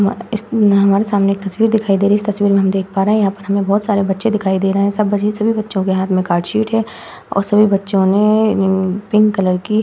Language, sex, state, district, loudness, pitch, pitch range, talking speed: Hindi, female, Uttar Pradesh, Muzaffarnagar, -15 LUFS, 200 Hz, 195-215 Hz, 275 wpm